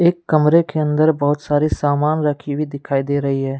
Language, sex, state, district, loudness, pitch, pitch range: Hindi, male, Jharkhand, Deoghar, -18 LUFS, 150 Hz, 145-155 Hz